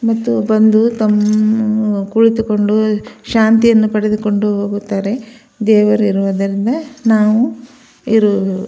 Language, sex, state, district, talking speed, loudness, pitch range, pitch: Kannada, female, Karnataka, Belgaum, 75 wpm, -14 LUFS, 210-225 Hz, 215 Hz